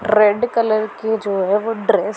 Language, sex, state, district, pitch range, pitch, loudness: Hindi, female, Punjab, Pathankot, 205-225 Hz, 215 Hz, -18 LUFS